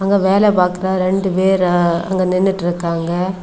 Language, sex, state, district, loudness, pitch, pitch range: Tamil, female, Tamil Nadu, Kanyakumari, -16 LUFS, 185 Hz, 175-190 Hz